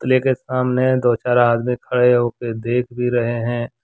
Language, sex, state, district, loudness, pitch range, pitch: Hindi, male, Jharkhand, Deoghar, -18 LUFS, 120-125 Hz, 125 Hz